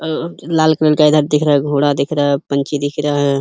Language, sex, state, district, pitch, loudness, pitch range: Hindi, male, Uttar Pradesh, Hamirpur, 145 Hz, -15 LUFS, 145-155 Hz